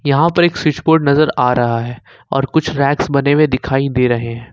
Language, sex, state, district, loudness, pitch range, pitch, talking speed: Hindi, male, Jharkhand, Ranchi, -15 LUFS, 125-155 Hz, 140 Hz, 240 wpm